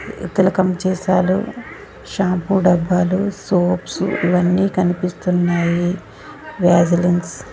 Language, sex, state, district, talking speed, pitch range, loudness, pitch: Telugu, female, Andhra Pradesh, Sri Satya Sai, 65 wpm, 175-185 Hz, -17 LUFS, 180 Hz